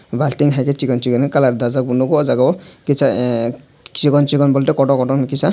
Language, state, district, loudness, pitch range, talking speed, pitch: Kokborok, Tripura, Dhalai, -16 LUFS, 125-145 Hz, 195 wpm, 140 Hz